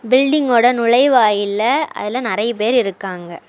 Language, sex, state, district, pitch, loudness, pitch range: Tamil, female, Tamil Nadu, Kanyakumari, 230 Hz, -15 LUFS, 205-250 Hz